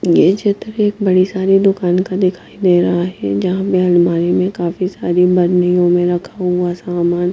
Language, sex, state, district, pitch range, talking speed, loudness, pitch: Hindi, female, Himachal Pradesh, Shimla, 175-190 Hz, 190 wpm, -15 LUFS, 180 Hz